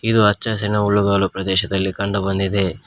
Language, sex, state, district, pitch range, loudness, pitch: Kannada, male, Karnataka, Koppal, 95-105 Hz, -18 LUFS, 100 Hz